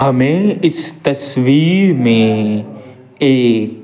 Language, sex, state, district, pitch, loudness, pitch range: Hindi, male, Bihar, Patna, 130 Hz, -13 LUFS, 115-160 Hz